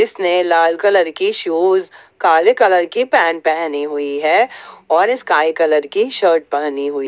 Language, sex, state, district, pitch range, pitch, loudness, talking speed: Hindi, female, Jharkhand, Ranchi, 150-220 Hz, 165 Hz, -15 LUFS, 180 wpm